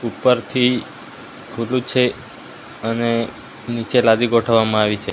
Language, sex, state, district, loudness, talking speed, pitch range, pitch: Gujarati, male, Gujarat, Valsad, -18 LUFS, 105 wpm, 115-125 Hz, 115 Hz